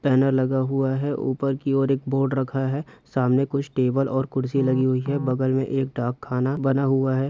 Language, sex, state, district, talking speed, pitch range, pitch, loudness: Hindi, male, Chhattisgarh, Rajnandgaon, 220 wpm, 130-135 Hz, 135 Hz, -23 LUFS